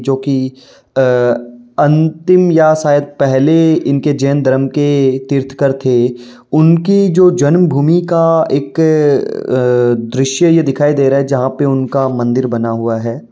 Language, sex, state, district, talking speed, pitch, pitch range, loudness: Hindi, male, Uttar Pradesh, Varanasi, 145 wpm, 140 Hz, 130-155 Hz, -12 LUFS